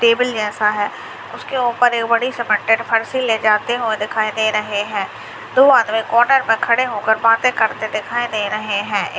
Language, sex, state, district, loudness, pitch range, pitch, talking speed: Hindi, female, Bihar, Purnia, -17 LUFS, 215-240 Hz, 225 Hz, 175 wpm